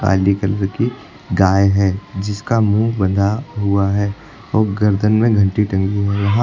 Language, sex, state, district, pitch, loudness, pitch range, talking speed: Hindi, male, Uttar Pradesh, Lucknow, 100 Hz, -17 LUFS, 100-110 Hz, 170 wpm